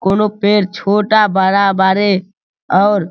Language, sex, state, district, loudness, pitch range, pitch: Hindi, male, Bihar, Sitamarhi, -13 LUFS, 190-205 Hz, 200 Hz